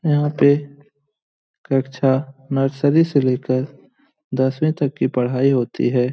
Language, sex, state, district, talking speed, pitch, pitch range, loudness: Hindi, male, Bihar, Lakhisarai, 115 wpm, 140 Hz, 130-145 Hz, -19 LUFS